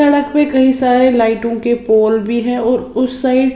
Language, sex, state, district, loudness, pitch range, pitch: Hindi, female, Maharashtra, Washim, -13 LUFS, 230-260 Hz, 250 Hz